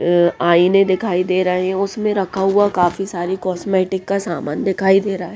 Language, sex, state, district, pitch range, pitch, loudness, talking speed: Hindi, female, Punjab, Pathankot, 180-195 Hz, 190 Hz, -17 LUFS, 200 wpm